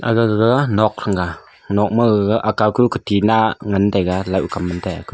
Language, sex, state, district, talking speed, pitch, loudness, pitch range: Wancho, male, Arunachal Pradesh, Longding, 175 wpm, 105 Hz, -17 LUFS, 95-110 Hz